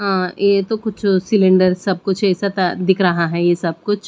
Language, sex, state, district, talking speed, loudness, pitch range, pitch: Hindi, female, Punjab, Pathankot, 220 wpm, -17 LUFS, 180-200 Hz, 190 Hz